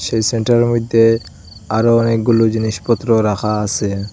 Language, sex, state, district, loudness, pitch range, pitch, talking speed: Bengali, male, Assam, Hailakandi, -15 LUFS, 105-115 Hz, 110 Hz, 130 wpm